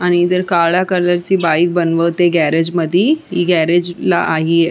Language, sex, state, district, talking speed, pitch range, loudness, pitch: Marathi, female, Maharashtra, Sindhudurg, 140 wpm, 165-180 Hz, -14 LUFS, 175 Hz